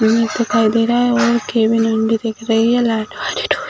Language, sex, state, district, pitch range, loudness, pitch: Hindi, female, Bihar, Muzaffarpur, 220-235 Hz, -16 LUFS, 225 Hz